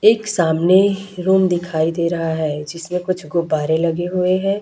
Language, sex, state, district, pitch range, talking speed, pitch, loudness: Hindi, female, Chhattisgarh, Raipur, 165-190 Hz, 170 wpm, 175 Hz, -18 LUFS